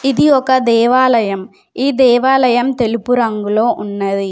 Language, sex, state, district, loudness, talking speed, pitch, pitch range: Telugu, female, Telangana, Komaram Bheem, -13 LUFS, 110 wpm, 245 Hz, 220-260 Hz